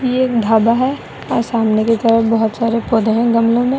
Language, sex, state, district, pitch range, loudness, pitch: Hindi, female, Assam, Sonitpur, 225-240 Hz, -15 LUFS, 230 Hz